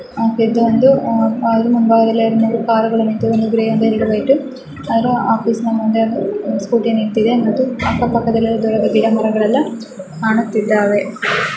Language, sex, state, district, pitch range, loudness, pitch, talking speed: Kannada, female, Karnataka, Gulbarga, 220-230 Hz, -15 LUFS, 225 Hz, 145 wpm